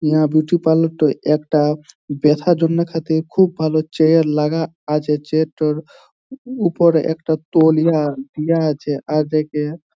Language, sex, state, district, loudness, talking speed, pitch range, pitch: Bengali, male, West Bengal, Jhargram, -17 LUFS, 120 wpm, 150-165 Hz, 155 Hz